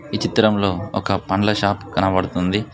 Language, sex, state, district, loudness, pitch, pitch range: Telugu, male, Telangana, Mahabubabad, -20 LUFS, 100 Hz, 95-105 Hz